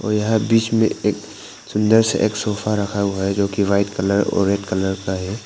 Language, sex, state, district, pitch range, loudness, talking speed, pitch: Hindi, male, Arunachal Pradesh, Papum Pare, 100-105 Hz, -19 LUFS, 230 wpm, 100 Hz